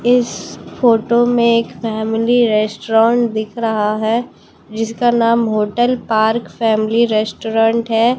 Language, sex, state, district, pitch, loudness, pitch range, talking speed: Hindi, female, Bihar, West Champaran, 225 Hz, -15 LUFS, 220-235 Hz, 115 wpm